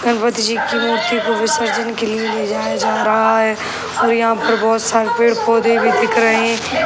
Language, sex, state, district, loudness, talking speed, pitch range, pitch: Hindi, male, Bihar, Sitamarhi, -15 LUFS, 185 wpm, 225-230 Hz, 230 Hz